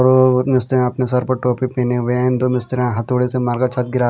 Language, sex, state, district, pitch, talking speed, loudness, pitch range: Hindi, male, Punjab, Kapurthala, 125 Hz, 235 wpm, -17 LUFS, 125-130 Hz